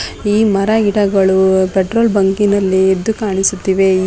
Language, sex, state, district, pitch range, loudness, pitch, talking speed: Kannada, female, Karnataka, Raichur, 190-205 Hz, -13 LUFS, 195 Hz, 105 wpm